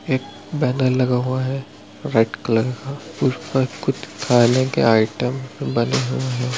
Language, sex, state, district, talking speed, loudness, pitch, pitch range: Hindi, male, Bihar, Araria, 155 wpm, -20 LUFS, 125 Hz, 120-130 Hz